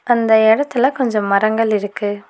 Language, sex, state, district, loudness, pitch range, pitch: Tamil, female, Tamil Nadu, Nilgiris, -15 LUFS, 205-240 Hz, 220 Hz